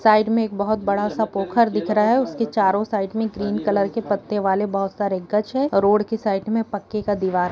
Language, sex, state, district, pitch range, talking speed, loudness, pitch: Hindi, female, Jharkhand, Sahebganj, 200-220 Hz, 245 wpm, -21 LUFS, 210 Hz